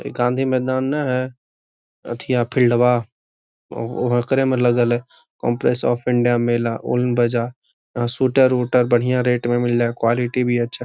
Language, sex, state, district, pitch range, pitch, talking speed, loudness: Magahi, male, Bihar, Gaya, 120-125 Hz, 120 Hz, 160 wpm, -19 LUFS